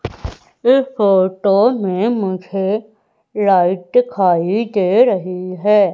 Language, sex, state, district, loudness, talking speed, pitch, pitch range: Hindi, female, Madhya Pradesh, Umaria, -16 LUFS, 90 wpm, 200 Hz, 185-220 Hz